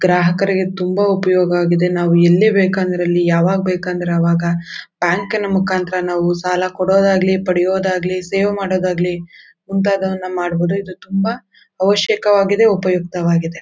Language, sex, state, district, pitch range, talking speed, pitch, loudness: Kannada, female, Karnataka, Mysore, 175-195 Hz, 110 wpm, 185 Hz, -16 LUFS